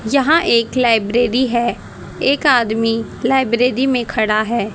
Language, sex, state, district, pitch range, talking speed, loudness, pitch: Hindi, female, Haryana, Jhajjar, 225-260 Hz, 125 wpm, -16 LUFS, 240 Hz